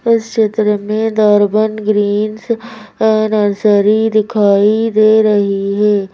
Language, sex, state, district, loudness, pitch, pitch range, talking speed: Hindi, female, Madhya Pradesh, Bhopal, -13 LUFS, 215 Hz, 205-220 Hz, 100 wpm